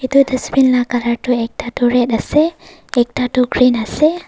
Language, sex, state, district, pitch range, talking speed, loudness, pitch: Nagamese, female, Nagaland, Dimapur, 245-270 Hz, 180 wpm, -15 LUFS, 250 Hz